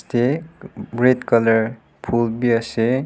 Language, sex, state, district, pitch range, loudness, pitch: Nagamese, male, Nagaland, Kohima, 115-135 Hz, -19 LUFS, 120 Hz